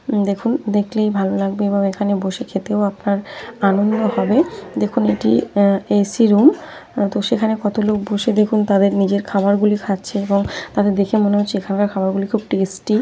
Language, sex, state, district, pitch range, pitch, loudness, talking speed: Bengali, female, West Bengal, North 24 Parganas, 195-215 Hz, 205 Hz, -17 LUFS, 175 wpm